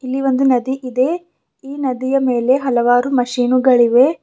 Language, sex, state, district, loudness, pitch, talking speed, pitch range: Kannada, female, Karnataka, Bidar, -15 LUFS, 255 Hz, 130 wpm, 250-270 Hz